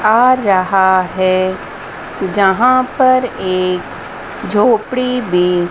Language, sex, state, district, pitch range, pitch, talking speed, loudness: Hindi, female, Madhya Pradesh, Dhar, 185-250 Hz, 190 Hz, 85 wpm, -13 LUFS